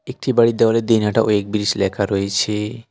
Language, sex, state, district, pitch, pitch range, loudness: Bengali, male, West Bengal, Alipurduar, 105 Hz, 100-115 Hz, -18 LUFS